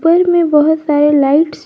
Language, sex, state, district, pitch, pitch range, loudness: Hindi, female, Jharkhand, Garhwa, 310 Hz, 295-335 Hz, -11 LUFS